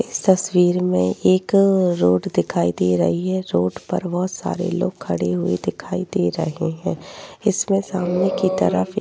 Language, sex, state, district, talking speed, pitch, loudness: Hindi, female, Uttar Pradesh, Jyotiba Phule Nagar, 165 wpm, 175 Hz, -20 LUFS